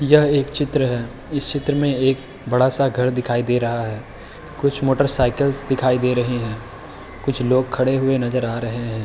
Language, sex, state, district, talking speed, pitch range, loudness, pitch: Hindi, male, Uttar Pradesh, Hamirpur, 185 wpm, 120-140 Hz, -20 LUFS, 130 Hz